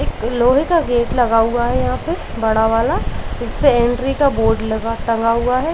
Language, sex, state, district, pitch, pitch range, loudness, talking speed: Hindi, female, Uttar Pradesh, Jalaun, 235 Hz, 225-255 Hz, -17 LUFS, 200 wpm